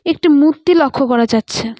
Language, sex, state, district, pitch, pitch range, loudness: Bengali, female, West Bengal, Cooch Behar, 290 Hz, 230-325 Hz, -13 LUFS